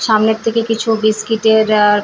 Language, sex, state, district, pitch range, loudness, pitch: Bengali, female, West Bengal, Paschim Medinipur, 215-225 Hz, -14 LUFS, 220 Hz